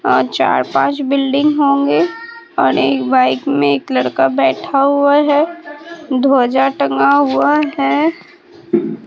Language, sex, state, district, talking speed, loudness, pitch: Hindi, female, Bihar, Katihar, 120 wpm, -14 LUFS, 280 Hz